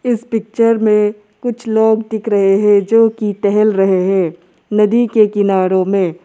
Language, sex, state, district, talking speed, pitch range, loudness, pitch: Hindi, male, Arunachal Pradesh, Lower Dibang Valley, 165 wpm, 195-220 Hz, -14 LUFS, 210 Hz